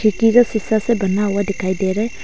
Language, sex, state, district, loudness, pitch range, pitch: Hindi, female, Arunachal Pradesh, Longding, -17 LUFS, 195-220 Hz, 215 Hz